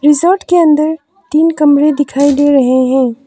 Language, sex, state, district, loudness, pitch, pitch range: Hindi, female, Arunachal Pradesh, Papum Pare, -11 LUFS, 295 Hz, 280-320 Hz